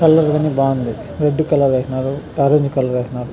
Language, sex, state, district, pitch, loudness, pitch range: Telugu, male, Andhra Pradesh, Chittoor, 140 Hz, -17 LUFS, 130-150 Hz